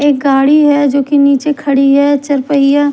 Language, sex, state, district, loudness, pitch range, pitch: Hindi, female, Himachal Pradesh, Shimla, -10 LUFS, 275-290 Hz, 285 Hz